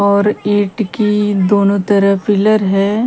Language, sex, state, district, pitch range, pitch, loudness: Hindi, female, Haryana, Charkhi Dadri, 200-210 Hz, 205 Hz, -13 LUFS